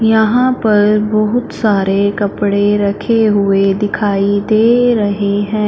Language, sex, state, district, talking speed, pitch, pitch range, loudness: Hindi, female, Punjab, Fazilka, 115 wpm, 210 Hz, 200-220 Hz, -13 LUFS